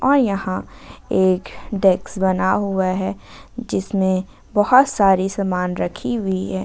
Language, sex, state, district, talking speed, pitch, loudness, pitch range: Hindi, female, Jharkhand, Ranchi, 125 wpm, 190 Hz, -19 LUFS, 185-205 Hz